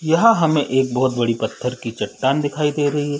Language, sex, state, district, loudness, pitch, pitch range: Hindi, male, Chhattisgarh, Sarguja, -19 LUFS, 135 Hz, 125-150 Hz